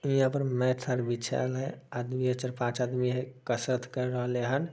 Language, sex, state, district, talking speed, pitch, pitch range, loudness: Maithili, male, Bihar, Samastipur, 215 wpm, 125 Hz, 125-130 Hz, -31 LUFS